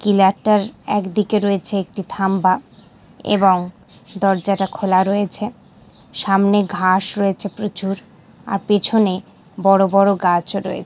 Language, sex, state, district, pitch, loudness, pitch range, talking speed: Bengali, female, West Bengal, Malda, 195 Hz, -18 LUFS, 190-205 Hz, 110 wpm